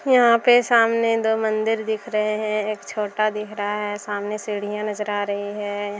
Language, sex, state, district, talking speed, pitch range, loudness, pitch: Hindi, female, Bihar, Saran, 190 wpm, 205-220 Hz, -22 LUFS, 215 Hz